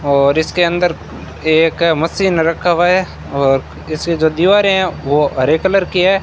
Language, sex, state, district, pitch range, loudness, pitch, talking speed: Hindi, male, Rajasthan, Bikaner, 155-180 Hz, -14 LUFS, 165 Hz, 175 wpm